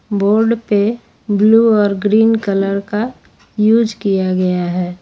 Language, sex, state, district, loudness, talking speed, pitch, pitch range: Hindi, female, Jharkhand, Ranchi, -14 LUFS, 130 wpm, 210 Hz, 195-225 Hz